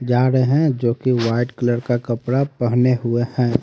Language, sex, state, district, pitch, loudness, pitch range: Hindi, male, Haryana, Rohtak, 125 Hz, -19 LUFS, 120-130 Hz